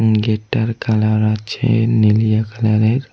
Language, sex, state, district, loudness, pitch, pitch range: Bengali, male, West Bengal, Cooch Behar, -16 LUFS, 110 Hz, 110-115 Hz